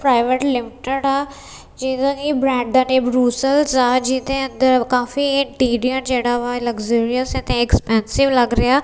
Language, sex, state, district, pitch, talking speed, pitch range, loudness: Punjabi, female, Punjab, Kapurthala, 260 Hz, 120 wpm, 245-270 Hz, -18 LUFS